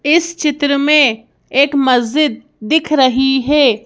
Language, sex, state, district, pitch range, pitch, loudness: Hindi, female, Madhya Pradesh, Bhopal, 260-300 Hz, 280 Hz, -13 LUFS